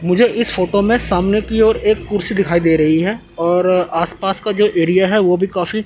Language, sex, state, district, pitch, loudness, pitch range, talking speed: Hindi, male, Chandigarh, Chandigarh, 195 Hz, -15 LUFS, 180-215 Hz, 235 wpm